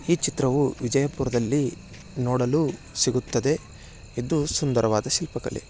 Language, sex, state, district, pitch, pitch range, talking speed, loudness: Kannada, male, Karnataka, Bijapur, 130 Hz, 120-145 Hz, 95 wpm, -25 LUFS